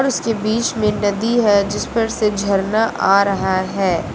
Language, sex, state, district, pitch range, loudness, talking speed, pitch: Hindi, female, Uttar Pradesh, Lucknow, 195-225 Hz, -17 LUFS, 190 wpm, 210 Hz